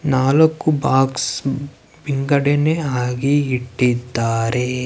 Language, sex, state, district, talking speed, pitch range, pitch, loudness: Kannada, male, Karnataka, Chamarajanagar, 60 wpm, 125-145 Hz, 135 Hz, -18 LUFS